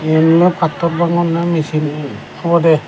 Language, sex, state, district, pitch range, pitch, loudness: Chakma, male, Tripura, Dhalai, 155-170 Hz, 165 Hz, -15 LUFS